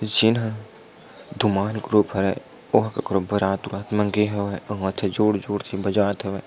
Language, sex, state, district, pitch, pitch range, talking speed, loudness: Chhattisgarhi, male, Chhattisgarh, Sukma, 105 Hz, 100-105 Hz, 150 wpm, -22 LUFS